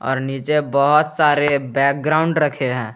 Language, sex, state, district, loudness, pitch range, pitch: Hindi, male, Jharkhand, Garhwa, -17 LUFS, 135-150 Hz, 145 Hz